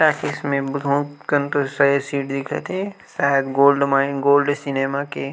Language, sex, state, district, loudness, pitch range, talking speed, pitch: Chhattisgarhi, male, Chhattisgarh, Rajnandgaon, -20 LUFS, 140-145 Hz, 155 wpm, 140 Hz